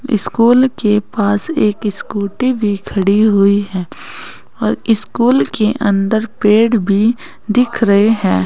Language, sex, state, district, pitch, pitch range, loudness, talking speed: Hindi, female, Uttar Pradesh, Saharanpur, 215 Hz, 200-235 Hz, -14 LUFS, 130 wpm